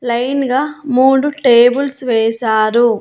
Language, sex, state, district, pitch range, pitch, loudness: Telugu, female, Andhra Pradesh, Annamaya, 235-270 Hz, 250 Hz, -13 LUFS